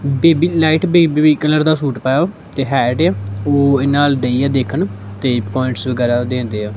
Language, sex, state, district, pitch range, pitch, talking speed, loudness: Punjabi, male, Punjab, Kapurthala, 125-155 Hz, 135 Hz, 205 wpm, -15 LUFS